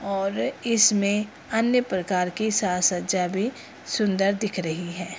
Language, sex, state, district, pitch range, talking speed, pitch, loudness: Hindi, female, Bihar, Purnia, 180-220 Hz, 125 wpm, 200 Hz, -24 LUFS